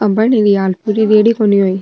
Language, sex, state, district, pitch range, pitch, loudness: Marwari, female, Rajasthan, Nagaur, 195-220 Hz, 210 Hz, -12 LUFS